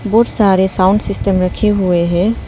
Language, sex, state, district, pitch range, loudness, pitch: Hindi, female, Arunachal Pradesh, Papum Pare, 185-210 Hz, -13 LUFS, 195 Hz